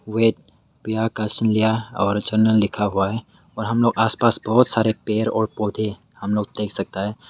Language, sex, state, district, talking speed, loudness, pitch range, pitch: Hindi, male, Meghalaya, West Garo Hills, 140 wpm, -21 LUFS, 105-115 Hz, 110 Hz